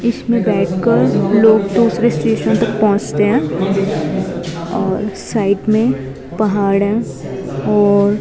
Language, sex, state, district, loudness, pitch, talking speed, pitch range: Hindi, female, Himachal Pradesh, Shimla, -15 LUFS, 205 Hz, 110 wpm, 190-215 Hz